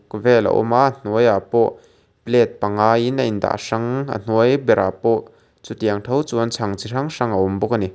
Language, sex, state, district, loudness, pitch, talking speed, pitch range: Mizo, male, Mizoram, Aizawl, -19 LUFS, 115 Hz, 240 wpm, 105-125 Hz